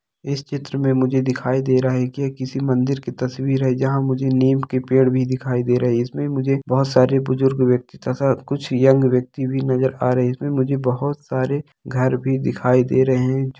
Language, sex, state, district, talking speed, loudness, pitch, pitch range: Hindi, male, Bihar, Purnia, 220 wpm, -19 LUFS, 130 Hz, 130-135 Hz